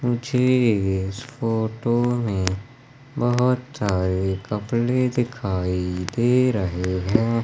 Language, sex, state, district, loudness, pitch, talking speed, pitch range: Hindi, male, Madhya Pradesh, Katni, -22 LUFS, 115 Hz, 90 wpm, 95-125 Hz